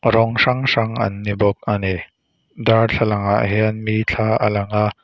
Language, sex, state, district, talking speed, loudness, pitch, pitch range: Mizo, male, Mizoram, Aizawl, 180 wpm, -18 LUFS, 110 Hz, 100-115 Hz